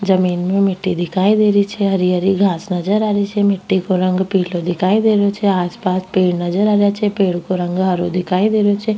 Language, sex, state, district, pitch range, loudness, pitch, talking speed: Rajasthani, female, Rajasthan, Nagaur, 180-205 Hz, -16 LUFS, 190 Hz, 235 wpm